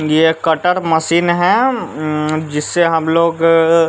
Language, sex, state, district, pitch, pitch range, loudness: Hindi, male, Bihar, West Champaran, 165 Hz, 155-170 Hz, -14 LUFS